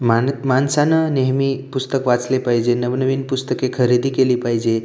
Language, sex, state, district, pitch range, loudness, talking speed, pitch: Marathi, male, Maharashtra, Aurangabad, 120-135 Hz, -18 LUFS, 135 wpm, 130 Hz